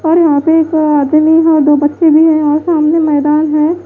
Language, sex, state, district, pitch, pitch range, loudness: Hindi, female, Bihar, West Champaran, 310 Hz, 300-320 Hz, -10 LUFS